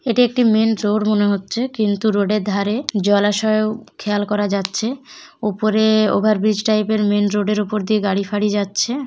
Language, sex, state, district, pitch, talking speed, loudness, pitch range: Bengali, male, West Bengal, Jalpaiguri, 210 Hz, 185 wpm, -18 LUFS, 205-220 Hz